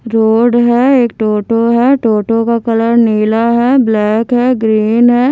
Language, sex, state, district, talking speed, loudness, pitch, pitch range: Hindi, female, Himachal Pradesh, Shimla, 160 wpm, -11 LUFS, 230 Hz, 220-240 Hz